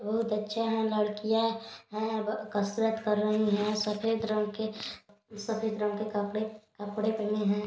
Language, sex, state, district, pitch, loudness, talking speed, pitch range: Hindi, male, Chhattisgarh, Balrampur, 215 Hz, -31 LUFS, 140 wpm, 210-220 Hz